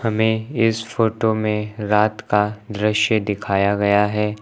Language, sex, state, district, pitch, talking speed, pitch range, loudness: Hindi, male, Uttar Pradesh, Lucknow, 105 Hz, 135 wpm, 105-110 Hz, -19 LUFS